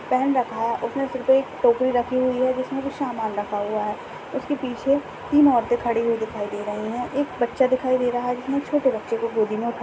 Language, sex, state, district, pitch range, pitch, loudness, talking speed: Hindi, male, Maharashtra, Nagpur, 230-265 Hz, 250 Hz, -23 LUFS, 230 wpm